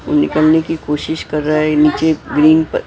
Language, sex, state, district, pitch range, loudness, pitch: Hindi, male, Maharashtra, Mumbai Suburban, 150-160 Hz, -14 LUFS, 155 Hz